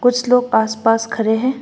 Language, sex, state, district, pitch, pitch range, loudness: Hindi, female, Assam, Hailakandi, 240 Hz, 220-250 Hz, -16 LUFS